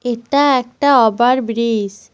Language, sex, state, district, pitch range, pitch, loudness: Bengali, female, West Bengal, Cooch Behar, 230-260 Hz, 245 Hz, -15 LUFS